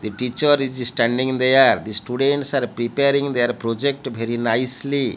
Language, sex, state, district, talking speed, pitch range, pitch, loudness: English, male, Odisha, Malkangiri, 150 wpm, 120-140 Hz, 125 Hz, -19 LUFS